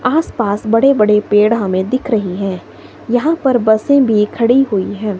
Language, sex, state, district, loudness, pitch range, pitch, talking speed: Hindi, female, Himachal Pradesh, Shimla, -14 LUFS, 205-255 Hz, 220 Hz, 175 wpm